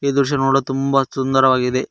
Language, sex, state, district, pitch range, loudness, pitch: Kannada, male, Karnataka, Koppal, 130-140 Hz, -17 LUFS, 135 Hz